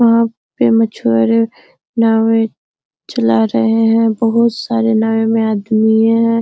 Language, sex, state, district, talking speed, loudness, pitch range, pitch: Hindi, female, Bihar, Araria, 130 wpm, -14 LUFS, 220-230 Hz, 225 Hz